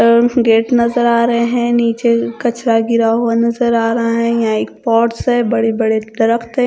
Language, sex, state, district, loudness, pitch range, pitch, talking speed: Hindi, female, Punjab, Kapurthala, -14 LUFS, 230-235 Hz, 235 Hz, 180 wpm